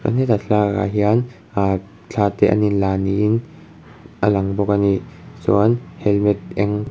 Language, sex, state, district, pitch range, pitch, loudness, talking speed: Mizo, male, Mizoram, Aizawl, 100-110 Hz, 105 Hz, -19 LUFS, 155 wpm